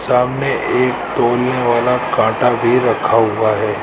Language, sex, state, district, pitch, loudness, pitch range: Hindi, male, Rajasthan, Jaipur, 125 Hz, -15 LUFS, 120-125 Hz